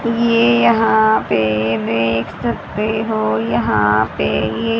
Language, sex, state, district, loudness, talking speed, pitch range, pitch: Hindi, female, Haryana, Jhajjar, -16 LUFS, 115 wpm, 110-120 Hz, 115 Hz